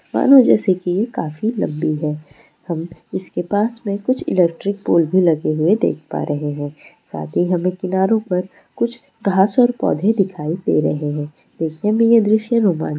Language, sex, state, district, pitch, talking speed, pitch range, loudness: Maithili, female, Bihar, Madhepura, 185 Hz, 185 wpm, 155-215 Hz, -18 LUFS